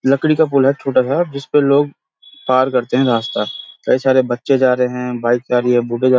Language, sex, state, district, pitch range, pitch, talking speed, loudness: Hindi, male, Uttarakhand, Uttarkashi, 125-140 Hz, 130 Hz, 225 wpm, -16 LUFS